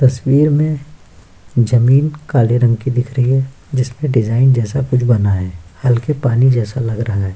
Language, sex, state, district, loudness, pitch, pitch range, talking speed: Hindi, male, Bihar, Kishanganj, -15 LUFS, 125 Hz, 115-135 Hz, 170 wpm